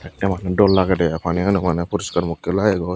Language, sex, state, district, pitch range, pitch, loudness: Chakma, male, Tripura, Unakoti, 85-100 Hz, 90 Hz, -19 LUFS